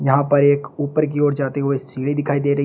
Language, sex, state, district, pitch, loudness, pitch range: Hindi, male, Uttar Pradesh, Shamli, 140 Hz, -19 LUFS, 140-145 Hz